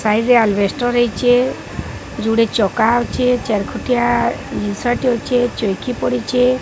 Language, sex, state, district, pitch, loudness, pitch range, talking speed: Odia, male, Odisha, Sambalpur, 240 Hz, -17 LUFS, 220-245 Hz, 135 wpm